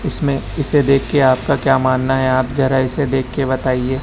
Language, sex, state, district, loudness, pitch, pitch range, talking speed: Hindi, male, Chhattisgarh, Raipur, -16 LUFS, 135 Hz, 130-140 Hz, 180 wpm